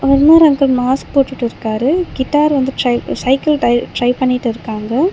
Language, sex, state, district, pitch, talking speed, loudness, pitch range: Tamil, female, Tamil Nadu, Chennai, 260 Hz, 140 wpm, -14 LUFS, 240-285 Hz